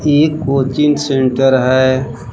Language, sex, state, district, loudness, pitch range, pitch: Hindi, male, Jharkhand, Palamu, -13 LUFS, 130-145 Hz, 135 Hz